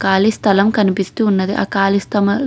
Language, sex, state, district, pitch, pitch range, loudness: Telugu, female, Andhra Pradesh, Krishna, 200 Hz, 195-210 Hz, -15 LUFS